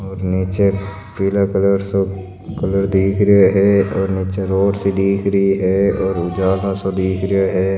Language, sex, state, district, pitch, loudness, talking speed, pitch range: Marwari, male, Rajasthan, Nagaur, 95 Hz, -17 LUFS, 170 wpm, 95-100 Hz